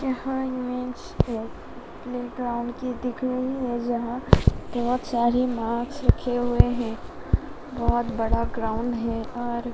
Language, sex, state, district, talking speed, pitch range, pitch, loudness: Hindi, female, Madhya Pradesh, Dhar, 130 wpm, 235-250 Hz, 245 Hz, -26 LUFS